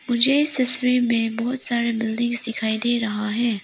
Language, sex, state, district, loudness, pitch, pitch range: Hindi, female, Arunachal Pradesh, Lower Dibang Valley, -20 LUFS, 240 Hz, 225-250 Hz